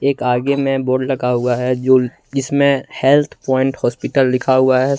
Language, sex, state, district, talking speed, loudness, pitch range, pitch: Hindi, male, Jharkhand, Ranchi, 180 wpm, -16 LUFS, 125-135 Hz, 130 Hz